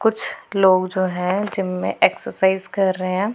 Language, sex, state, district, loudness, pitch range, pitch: Hindi, female, Punjab, Pathankot, -20 LUFS, 185-200 Hz, 190 Hz